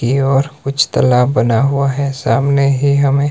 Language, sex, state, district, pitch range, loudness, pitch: Hindi, male, Himachal Pradesh, Shimla, 135-140 Hz, -14 LUFS, 140 Hz